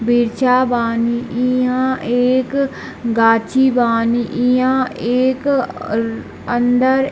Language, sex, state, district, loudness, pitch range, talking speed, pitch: Hindi, male, Bihar, Darbhanga, -16 LUFS, 235-260 Hz, 95 wpm, 245 Hz